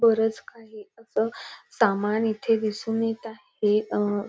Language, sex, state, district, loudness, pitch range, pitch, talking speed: Marathi, female, Maharashtra, Nagpur, -25 LUFS, 210-225 Hz, 220 Hz, 140 wpm